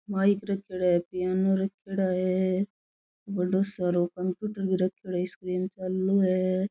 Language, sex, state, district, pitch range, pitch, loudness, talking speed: Rajasthani, female, Rajasthan, Churu, 185-195 Hz, 185 Hz, -28 LUFS, 135 wpm